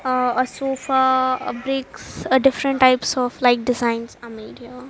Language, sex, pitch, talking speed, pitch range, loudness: English, female, 255 Hz, 160 wpm, 245-265 Hz, -19 LUFS